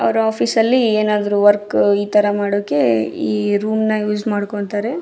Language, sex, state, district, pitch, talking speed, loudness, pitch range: Kannada, female, Karnataka, Raichur, 205 Hz, 130 wpm, -17 LUFS, 205-215 Hz